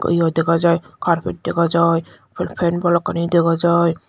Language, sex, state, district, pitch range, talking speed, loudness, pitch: Chakma, female, Tripura, Dhalai, 165-170 Hz, 145 wpm, -18 LUFS, 170 Hz